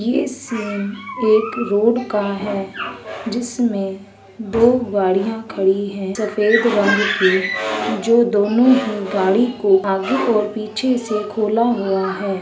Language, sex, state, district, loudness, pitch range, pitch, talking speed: Hindi, female, Uttarakhand, Uttarkashi, -18 LUFS, 195-230 Hz, 210 Hz, 125 wpm